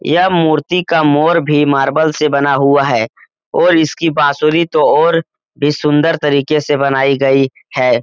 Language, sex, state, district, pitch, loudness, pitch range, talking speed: Hindi, male, Bihar, Lakhisarai, 150 Hz, -13 LUFS, 140-160 Hz, 165 wpm